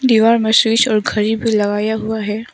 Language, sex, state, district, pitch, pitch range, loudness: Hindi, female, Arunachal Pradesh, Lower Dibang Valley, 220 Hz, 215-225 Hz, -15 LUFS